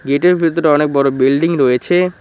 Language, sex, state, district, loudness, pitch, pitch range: Bengali, male, West Bengal, Cooch Behar, -13 LUFS, 150 Hz, 140-170 Hz